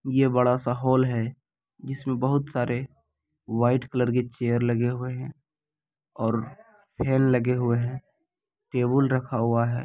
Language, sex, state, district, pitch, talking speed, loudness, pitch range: Maithili, male, Bihar, Supaul, 125 Hz, 140 wpm, -25 LUFS, 120-135 Hz